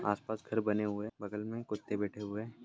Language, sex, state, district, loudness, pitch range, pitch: Hindi, male, Bihar, Sitamarhi, -37 LUFS, 105-110 Hz, 105 Hz